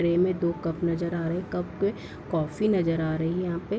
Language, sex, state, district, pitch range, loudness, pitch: Hindi, female, Bihar, Darbhanga, 165-180 Hz, -27 LUFS, 170 Hz